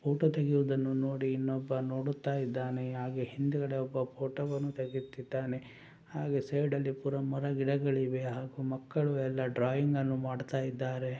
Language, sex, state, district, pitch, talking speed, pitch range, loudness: Kannada, male, Karnataka, Chamarajanagar, 135 Hz, 130 wpm, 130-140 Hz, -34 LUFS